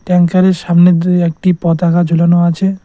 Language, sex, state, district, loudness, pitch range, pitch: Bengali, male, West Bengal, Cooch Behar, -11 LUFS, 170-180 Hz, 175 Hz